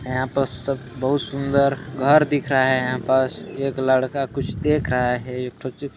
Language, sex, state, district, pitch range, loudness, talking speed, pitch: Hindi, male, Chhattisgarh, Balrampur, 130-140 Hz, -21 LUFS, 210 wpm, 130 Hz